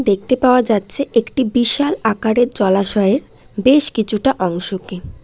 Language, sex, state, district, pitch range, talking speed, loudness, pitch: Bengali, female, West Bengal, Jalpaiguri, 200-255 Hz, 125 wpm, -16 LUFS, 220 Hz